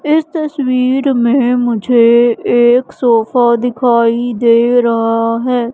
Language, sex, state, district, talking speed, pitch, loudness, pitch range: Hindi, female, Madhya Pradesh, Katni, 105 wpm, 240 Hz, -12 LUFS, 235-255 Hz